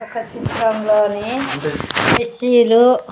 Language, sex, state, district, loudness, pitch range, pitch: Telugu, female, Andhra Pradesh, Sri Satya Sai, -16 LUFS, 215-240 Hz, 230 Hz